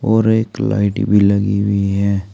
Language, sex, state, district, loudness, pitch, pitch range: Hindi, male, Uttar Pradesh, Saharanpur, -15 LUFS, 100 Hz, 100-110 Hz